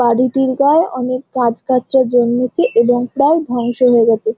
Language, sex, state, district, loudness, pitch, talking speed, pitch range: Bengali, female, West Bengal, Jhargram, -14 LUFS, 250 Hz, 135 wpm, 240-265 Hz